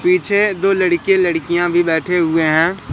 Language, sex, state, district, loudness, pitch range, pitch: Hindi, male, Madhya Pradesh, Katni, -15 LUFS, 165-190 Hz, 175 Hz